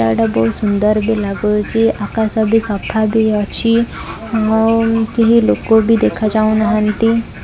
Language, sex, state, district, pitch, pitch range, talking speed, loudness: Odia, female, Odisha, Khordha, 220 Hz, 210-225 Hz, 130 wpm, -14 LUFS